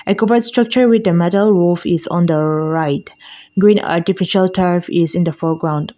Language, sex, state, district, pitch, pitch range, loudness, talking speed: English, female, Mizoram, Aizawl, 175 Hz, 165-200 Hz, -15 LUFS, 160 wpm